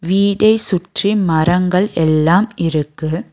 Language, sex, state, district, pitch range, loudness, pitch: Tamil, female, Tamil Nadu, Nilgiris, 160-205 Hz, -15 LUFS, 180 Hz